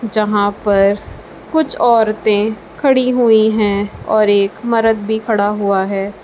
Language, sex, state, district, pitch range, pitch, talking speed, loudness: Hindi, female, Uttar Pradesh, Lucknow, 205-225 Hz, 215 Hz, 135 wpm, -14 LUFS